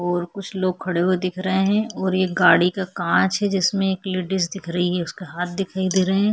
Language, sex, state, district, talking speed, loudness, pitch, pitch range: Hindi, female, Chhattisgarh, Kabirdham, 245 wpm, -21 LUFS, 185 Hz, 180-195 Hz